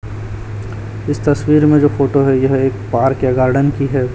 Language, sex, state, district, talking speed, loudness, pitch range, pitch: Hindi, male, Chhattisgarh, Raipur, 190 wpm, -14 LUFS, 110-140 Hz, 135 Hz